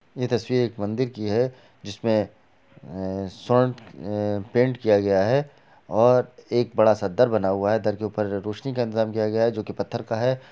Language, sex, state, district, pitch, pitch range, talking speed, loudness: Hindi, female, Bihar, Sitamarhi, 110 Hz, 105-125 Hz, 190 wpm, -24 LUFS